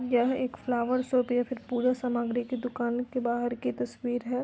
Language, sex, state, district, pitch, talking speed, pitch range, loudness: Hindi, female, Uttar Pradesh, Etah, 245 Hz, 205 wpm, 240-250 Hz, -29 LUFS